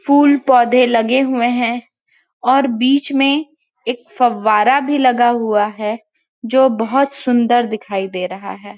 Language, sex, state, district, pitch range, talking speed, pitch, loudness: Hindi, female, Chhattisgarh, Balrampur, 230-275 Hz, 135 wpm, 245 Hz, -15 LUFS